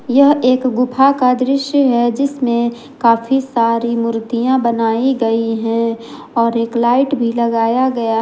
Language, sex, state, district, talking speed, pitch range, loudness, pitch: Hindi, female, Jharkhand, Garhwa, 140 wpm, 230-260 Hz, -15 LUFS, 240 Hz